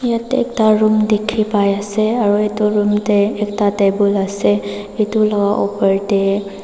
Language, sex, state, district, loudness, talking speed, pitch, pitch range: Nagamese, female, Nagaland, Dimapur, -16 LUFS, 135 wpm, 205 Hz, 200-215 Hz